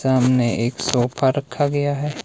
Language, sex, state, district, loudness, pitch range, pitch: Hindi, male, Himachal Pradesh, Shimla, -20 LUFS, 125-145 Hz, 130 Hz